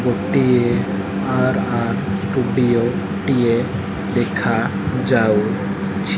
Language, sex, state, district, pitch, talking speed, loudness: Odia, male, Odisha, Malkangiri, 100 Hz, 80 wpm, -19 LUFS